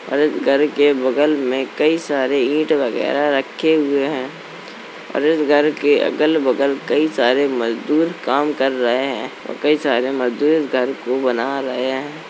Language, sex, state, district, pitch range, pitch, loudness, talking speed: Hindi, male, Uttar Pradesh, Jalaun, 130-150 Hz, 140 Hz, -18 LUFS, 170 wpm